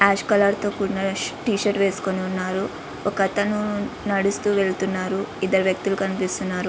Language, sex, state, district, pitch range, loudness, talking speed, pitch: Telugu, female, Andhra Pradesh, Visakhapatnam, 190-205 Hz, -23 LUFS, 125 wpm, 195 Hz